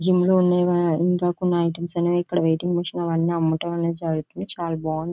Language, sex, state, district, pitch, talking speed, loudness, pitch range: Telugu, female, Andhra Pradesh, Visakhapatnam, 170 Hz, 175 wpm, -22 LUFS, 165-175 Hz